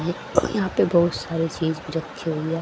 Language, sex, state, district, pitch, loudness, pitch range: Hindi, female, Haryana, Rohtak, 165 Hz, -23 LUFS, 160-170 Hz